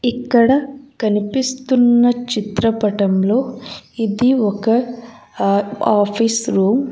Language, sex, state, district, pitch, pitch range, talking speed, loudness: Telugu, female, Andhra Pradesh, Sri Satya Sai, 235 Hz, 210-250 Hz, 80 wpm, -16 LUFS